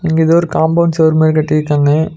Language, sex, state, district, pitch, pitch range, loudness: Tamil, male, Tamil Nadu, Nilgiris, 160 Hz, 155-165 Hz, -12 LUFS